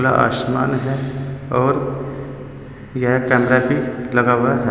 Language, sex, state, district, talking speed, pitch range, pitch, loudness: Hindi, male, Uttar Pradesh, Saharanpur, 140 wpm, 125-135 Hz, 130 Hz, -18 LUFS